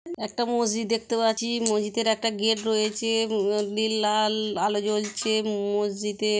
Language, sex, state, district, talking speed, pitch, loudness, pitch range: Bengali, female, West Bengal, Kolkata, 110 wpm, 215 Hz, -25 LUFS, 210-225 Hz